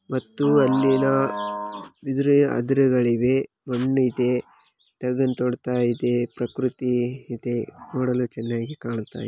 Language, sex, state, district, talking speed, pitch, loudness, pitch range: Kannada, male, Karnataka, Bellary, 95 wpm, 125 Hz, -23 LUFS, 120-135 Hz